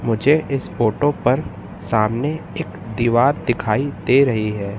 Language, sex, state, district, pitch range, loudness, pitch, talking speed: Hindi, male, Madhya Pradesh, Katni, 110-140 Hz, -19 LUFS, 120 Hz, 135 wpm